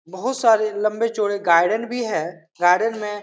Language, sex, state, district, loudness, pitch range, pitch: Hindi, male, Bihar, Supaul, -20 LUFS, 185-225 Hz, 215 Hz